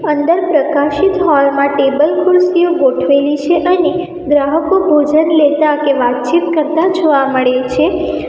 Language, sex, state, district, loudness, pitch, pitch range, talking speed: Gujarati, female, Gujarat, Valsad, -12 LUFS, 305 Hz, 280-340 Hz, 130 wpm